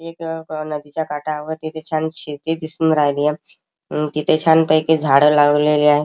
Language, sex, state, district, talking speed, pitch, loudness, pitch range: Marathi, male, Maharashtra, Chandrapur, 140 wpm, 155 Hz, -18 LUFS, 150-160 Hz